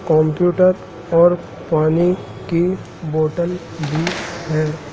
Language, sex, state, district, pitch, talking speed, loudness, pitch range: Hindi, male, Madhya Pradesh, Dhar, 170 Hz, 85 wpm, -18 LUFS, 155-175 Hz